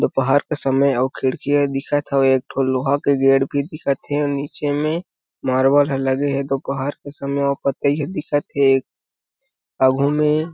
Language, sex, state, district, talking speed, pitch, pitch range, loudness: Chhattisgarhi, male, Chhattisgarh, Jashpur, 180 wpm, 140 Hz, 135-145 Hz, -19 LUFS